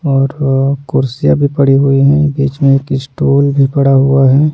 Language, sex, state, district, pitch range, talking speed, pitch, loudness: Hindi, male, Punjab, Pathankot, 135-140 Hz, 200 wpm, 135 Hz, -11 LUFS